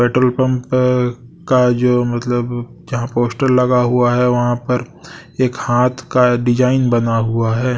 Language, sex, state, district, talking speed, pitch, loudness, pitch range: Hindi, male, Odisha, Sambalpur, 145 wpm, 125 Hz, -16 LUFS, 120-125 Hz